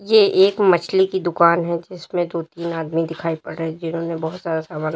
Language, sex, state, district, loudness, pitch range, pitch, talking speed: Hindi, female, Uttar Pradesh, Lalitpur, -20 LUFS, 165-180 Hz, 170 Hz, 195 wpm